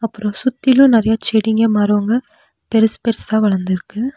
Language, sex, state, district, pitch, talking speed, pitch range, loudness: Tamil, female, Tamil Nadu, Nilgiris, 220 Hz, 115 wpm, 210-235 Hz, -15 LUFS